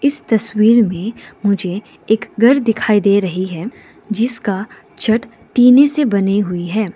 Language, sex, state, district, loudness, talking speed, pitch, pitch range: Hindi, female, Arunachal Pradesh, Lower Dibang Valley, -15 LUFS, 145 wpm, 220 Hz, 200-245 Hz